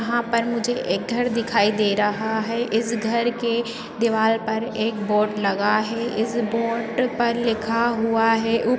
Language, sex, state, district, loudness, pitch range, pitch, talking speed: Hindi, female, Maharashtra, Chandrapur, -22 LUFS, 220-235 Hz, 230 Hz, 180 wpm